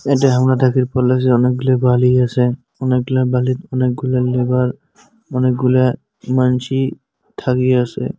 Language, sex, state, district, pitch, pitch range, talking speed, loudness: Bengali, male, West Bengal, Cooch Behar, 125 Hz, 125-130 Hz, 90 wpm, -16 LUFS